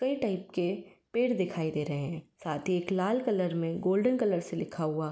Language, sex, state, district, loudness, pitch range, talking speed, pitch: Hindi, female, Uttar Pradesh, Varanasi, -31 LUFS, 165-200 Hz, 235 wpm, 180 Hz